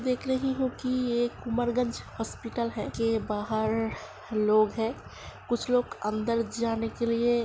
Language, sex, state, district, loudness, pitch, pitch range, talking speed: Hindi, female, Uttar Pradesh, Hamirpur, -29 LUFS, 230 Hz, 225-245 Hz, 160 wpm